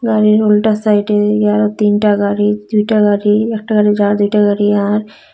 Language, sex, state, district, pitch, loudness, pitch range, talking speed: Bengali, female, Assam, Hailakandi, 210 Hz, -13 LUFS, 205-215 Hz, 155 wpm